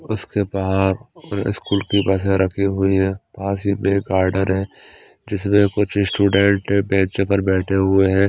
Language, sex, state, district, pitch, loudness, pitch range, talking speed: Hindi, male, Chandigarh, Chandigarh, 100 Hz, -19 LUFS, 95-100 Hz, 150 wpm